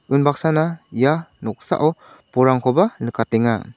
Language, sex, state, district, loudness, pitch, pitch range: Garo, male, Meghalaya, South Garo Hills, -19 LUFS, 140 Hz, 120-160 Hz